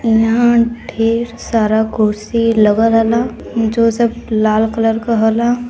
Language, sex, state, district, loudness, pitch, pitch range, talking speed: Hindi, female, Uttar Pradesh, Varanasi, -14 LUFS, 225 Hz, 220-235 Hz, 125 wpm